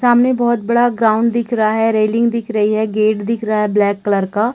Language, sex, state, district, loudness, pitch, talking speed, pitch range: Hindi, female, Chhattisgarh, Raigarh, -15 LUFS, 220 Hz, 240 wpm, 215-235 Hz